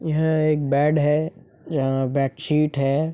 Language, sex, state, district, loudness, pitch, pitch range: Hindi, male, Bihar, East Champaran, -22 LUFS, 150 Hz, 140-155 Hz